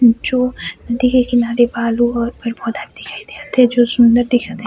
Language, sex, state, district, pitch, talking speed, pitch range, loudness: Chhattisgarhi, female, Chhattisgarh, Sarguja, 240 Hz, 180 wpm, 235-245 Hz, -15 LUFS